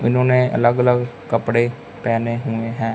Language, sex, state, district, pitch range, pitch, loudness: Hindi, male, Punjab, Fazilka, 115-125 Hz, 120 Hz, -19 LUFS